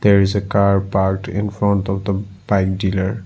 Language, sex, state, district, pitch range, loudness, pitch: English, male, Assam, Sonitpur, 95-100 Hz, -18 LUFS, 100 Hz